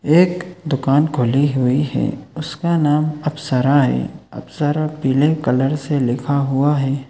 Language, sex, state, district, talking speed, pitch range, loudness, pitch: Hindi, male, Chhattisgarh, Raigarh, 145 wpm, 135-155 Hz, -18 LUFS, 145 Hz